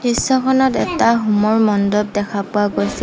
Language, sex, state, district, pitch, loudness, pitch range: Assamese, female, Assam, Sonitpur, 215 Hz, -16 LUFS, 205-240 Hz